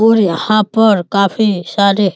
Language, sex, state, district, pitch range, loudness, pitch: Hindi, male, Bihar, East Champaran, 195-220 Hz, -13 LUFS, 200 Hz